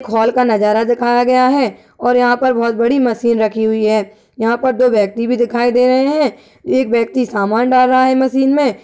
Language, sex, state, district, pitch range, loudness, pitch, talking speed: Hindi, male, Uttar Pradesh, Ghazipur, 225-255 Hz, -14 LUFS, 240 Hz, 225 wpm